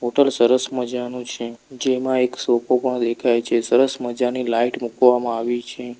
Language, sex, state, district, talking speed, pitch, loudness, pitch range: Gujarati, male, Gujarat, Valsad, 160 wpm, 125 Hz, -20 LUFS, 120-125 Hz